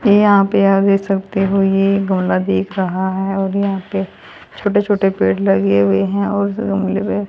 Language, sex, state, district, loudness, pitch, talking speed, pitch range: Hindi, female, Haryana, Rohtak, -16 LUFS, 195 Hz, 175 wpm, 190-200 Hz